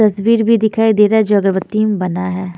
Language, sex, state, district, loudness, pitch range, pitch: Hindi, female, Punjab, Fazilka, -14 LUFS, 190-220 Hz, 210 Hz